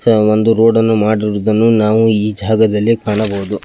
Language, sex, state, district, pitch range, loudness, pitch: Kannada, male, Karnataka, Belgaum, 105-115 Hz, -13 LUFS, 110 Hz